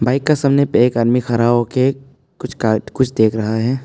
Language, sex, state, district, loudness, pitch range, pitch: Hindi, male, Arunachal Pradesh, Papum Pare, -16 LUFS, 115-135 Hz, 125 Hz